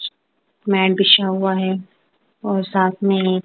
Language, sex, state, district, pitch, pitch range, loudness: Hindi, female, Punjab, Kapurthala, 190 Hz, 190-195 Hz, -17 LUFS